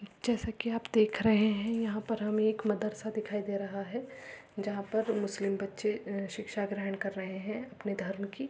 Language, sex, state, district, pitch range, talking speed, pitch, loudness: Hindi, female, Uttar Pradesh, Muzaffarnagar, 200-220 Hz, 195 wpm, 210 Hz, -33 LUFS